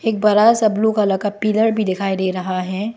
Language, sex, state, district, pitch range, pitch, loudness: Hindi, female, Arunachal Pradesh, Lower Dibang Valley, 190-220 Hz, 210 Hz, -17 LUFS